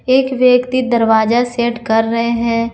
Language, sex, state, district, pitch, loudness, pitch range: Hindi, female, Jharkhand, Garhwa, 235 Hz, -14 LUFS, 230-250 Hz